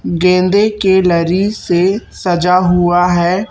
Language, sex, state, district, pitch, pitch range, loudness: Hindi, male, Chhattisgarh, Raipur, 180 Hz, 175-190 Hz, -12 LUFS